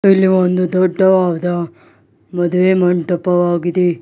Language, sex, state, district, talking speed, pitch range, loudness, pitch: Kannada, male, Karnataka, Bidar, 75 wpm, 175-185 Hz, -14 LUFS, 180 Hz